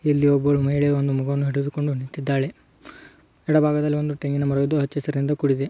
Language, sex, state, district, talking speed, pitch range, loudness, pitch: Kannada, male, Karnataka, Raichur, 145 wpm, 140-145 Hz, -22 LUFS, 140 Hz